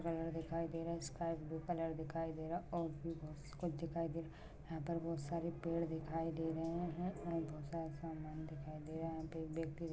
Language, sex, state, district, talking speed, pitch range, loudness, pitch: Hindi, female, Maharashtra, Sindhudurg, 255 wpm, 160-165 Hz, -44 LUFS, 165 Hz